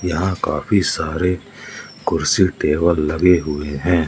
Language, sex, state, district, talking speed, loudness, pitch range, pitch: Hindi, male, Madhya Pradesh, Umaria, 115 wpm, -18 LUFS, 75-90 Hz, 85 Hz